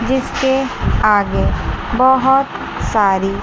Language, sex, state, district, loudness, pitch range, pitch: Hindi, female, Chandigarh, Chandigarh, -15 LUFS, 205-265 Hz, 255 Hz